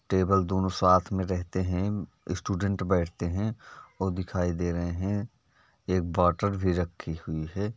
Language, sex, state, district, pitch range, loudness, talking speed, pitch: Hindi, male, Uttar Pradesh, Varanasi, 90-100 Hz, -28 LUFS, 145 wpm, 95 Hz